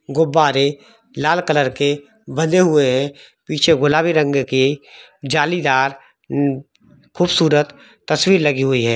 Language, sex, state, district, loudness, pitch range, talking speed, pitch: Hindi, male, Jharkhand, Jamtara, -17 LUFS, 140-160 Hz, 125 wpm, 145 Hz